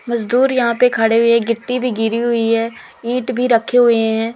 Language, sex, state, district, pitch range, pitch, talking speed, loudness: Hindi, female, Madhya Pradesh, Umaria, 230-245 Hz, 235 Hz, 205 wpm, -15 LUFS